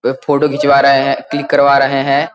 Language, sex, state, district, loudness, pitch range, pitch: Hindi, male, Uttar Pradesh, Gorakhpur, -12 LUFS, 135-145 Hz, 140 Hz